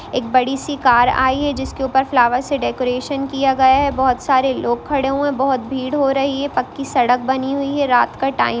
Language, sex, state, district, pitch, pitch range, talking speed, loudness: Hindi, female, Bihar, East Champaran, 265 Hz, 250-275 Hz, 235 wpm, -17 LUFS